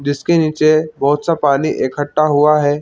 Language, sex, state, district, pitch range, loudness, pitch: Hindi, male, Chhattisgarh, Bilaspur, 145-155 Hz, -15 LUFS, 150 Hz